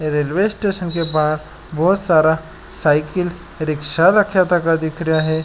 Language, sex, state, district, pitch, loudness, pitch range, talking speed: Marwari, male, Rajasthan, Nagaur, 160 Hz, -17 LUFS, 155-180 Hz, 145 wpm